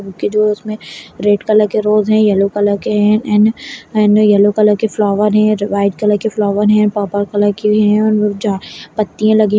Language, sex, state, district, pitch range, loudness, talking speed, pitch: Kumaoni, female, Uttarakhand, Uttarkashi, 205-215 Hz, -13 LUFS, 195 wpm, 210 Hz